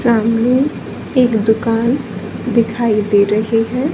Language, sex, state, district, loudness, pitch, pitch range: Hindi, female, Haryana, Charkhi Dadri, -15 LUFS, 230 Hz, 220-245 Hz